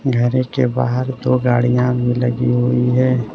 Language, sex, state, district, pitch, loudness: Hindi, male, Arunachal Pradesh, Lower Dibang Valley, 125 Hz, -17 LUFS